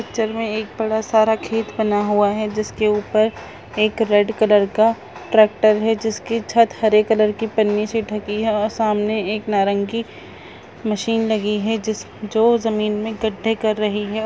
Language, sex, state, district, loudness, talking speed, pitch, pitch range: Hindi, female, Bihar, Purnia, -19 LUFS, 175 wpm, 215 Hz, 210-225 Hz